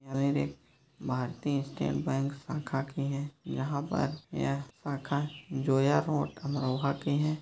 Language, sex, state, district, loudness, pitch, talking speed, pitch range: Hindi, male, Uttar Pradesh, Jyotiba Phule Nagar, -32 LUFS, 140 Hz, 120 wpm, 135-145 Hz